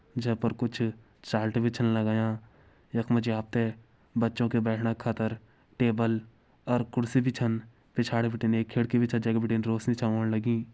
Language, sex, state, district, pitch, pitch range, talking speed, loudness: Garhwali, male, Uttarakhand, Uttarkashi, 115 Hz, 110-120 Hz, 190 wpm, -29 LUFS